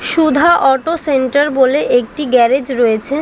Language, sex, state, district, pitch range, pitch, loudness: Bengali, female, West Bengal, Dakshin Dinajpur, 255-295 Hz, 270 Hz, -13 LUFS